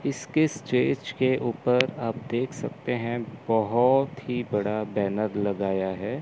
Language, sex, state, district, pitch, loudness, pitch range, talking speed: Hindi, male, Chandigarh, Chandigarh, 120 Hz, -26 LUFS, 105-130 Hz, 135 wpm